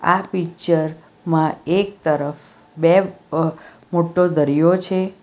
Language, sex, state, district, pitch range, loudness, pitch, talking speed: Gujarati, female, Gujarat, Valsad, 155-185 Hz, -19 LUFS, 170 Hz, 115 wpm